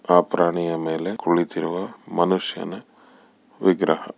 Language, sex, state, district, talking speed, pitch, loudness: Kannada, male, Karnataka, Bellary, 85 wpm, 85 Hz, -23 LUFS